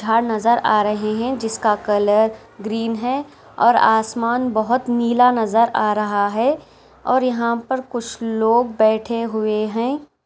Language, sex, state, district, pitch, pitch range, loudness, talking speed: Hindi, female, Maharashtra, Aurangabad, 230 Hz, 220-240 Hz, -19 LUFS, 130 wpm